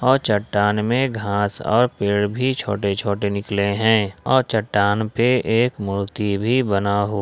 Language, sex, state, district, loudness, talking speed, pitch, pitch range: Hindi, male, Jharkhand, Ranchi, -20 LUFS, 160 wpm, 105 Hz, 100-120 Hz